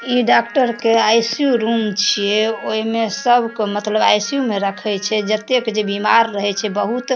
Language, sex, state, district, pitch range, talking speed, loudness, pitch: Maithili, female, Bihar, Darbhanga, 210-240 Hz, 195 wpm, -17 LUFS, 225 Hz